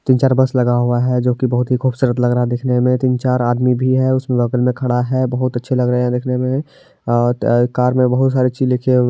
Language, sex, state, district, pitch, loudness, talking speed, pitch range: Hindi, male, Bihar, Madhepura, 125 Hz, -16 LUFS, 290 wpm, 125-130 Hz